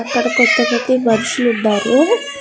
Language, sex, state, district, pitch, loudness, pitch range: Telugu, female, Andhra Pradesh, Annamaya, 245 Hz, -14 LUFS, 225-280 Hz